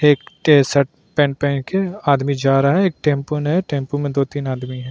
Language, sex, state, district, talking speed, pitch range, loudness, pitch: Hindi, male, Uttarakhand, Tehri Garhwal, 210 wpm, 140-150 Hz, -18 LUFS, 145 Hz